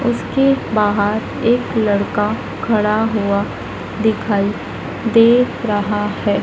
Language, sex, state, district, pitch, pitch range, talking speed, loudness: Hindi, female, Madhya Pradesh, Dhar, 215 Hz, 205-230 Hz, 95 wpm, -17 LUFS